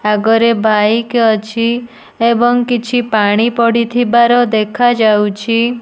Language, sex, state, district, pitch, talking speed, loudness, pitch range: Odia, female, Odisha, Nuapada, 230 Hz, 80 wpm, -12 LUFS, 220-240 Hz